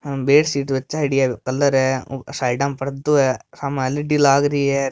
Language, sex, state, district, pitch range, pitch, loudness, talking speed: Marwari, male, Rajasthan, Nagaur, 130-145 Hz, 140 Hz, -19 LUFS, 185 wpm